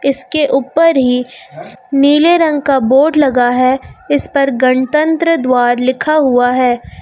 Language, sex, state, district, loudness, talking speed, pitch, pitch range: Hindi, female, Uttar Pradesh, Lucknow, -12 LUFS, 135 wpm, 275 Hz, 255-305 Hz